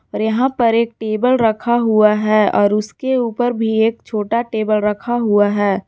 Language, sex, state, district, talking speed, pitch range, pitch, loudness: Hindi, female, Jharkhand, Garhwa, 185 wpm, 210-235 Hz, 220 Hz, -16 LUFS